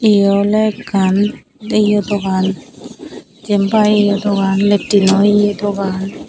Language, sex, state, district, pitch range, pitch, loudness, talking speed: Chakma, female, Tripura, Dhalai, 195-210 Hz, 205 Hz, -14 LUFS, 105 wpm